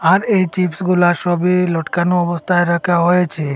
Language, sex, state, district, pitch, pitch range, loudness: Bengali, male, Assam, Hailakandi, 175 Hz, 170-180 Hz, -16 LUFS